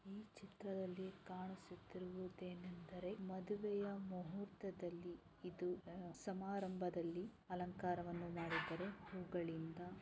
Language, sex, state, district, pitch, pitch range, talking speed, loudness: Kannada, female, Karnataka, Chamarajanagar, 180 Hz, 175-195 Hz, 65 wpm, -48 LUFS